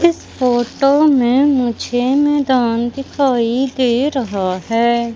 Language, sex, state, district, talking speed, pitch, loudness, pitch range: Hindi, female, Madhya Pradesh, Katni, 105 wpm, 250 Hz, -15 LUFS, 235-275 Hz